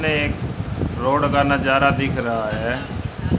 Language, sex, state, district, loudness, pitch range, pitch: Hindi, male, Haryana, Rohtak, -20 LUFS, 110-140 Hz, 120 Hz